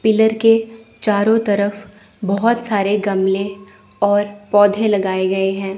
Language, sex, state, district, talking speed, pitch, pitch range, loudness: Hindi, female, Chandigarh, Chandigarh, 125 wpm, 205 Hz, 200-220 Hz, -17 LUFS